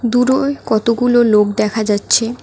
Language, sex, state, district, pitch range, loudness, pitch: Bengali, female, West Bengal, Cooch Behar, 215-245 Hz, -14 LUFS, 230 Hz